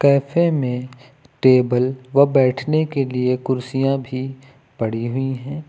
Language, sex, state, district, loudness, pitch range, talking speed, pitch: Hindi, male, Uttar Pradesh, Lucknow, -19 LUFS, 125-140 Hz, 125 wpm, 130 Hz